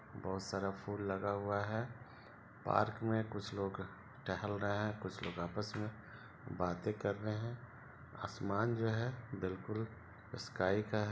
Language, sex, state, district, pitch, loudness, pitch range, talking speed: Hindi, male, Jharkhand, Sahebganj, 105 Hz, -40 LUFS, 100-115 Hz, 160 wpm